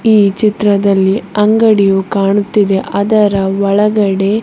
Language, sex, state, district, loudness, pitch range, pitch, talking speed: Kannada, female, Karnataka, Bidar, -11 LUFS, 195-210 Hz, 200 Hz, 80 wpm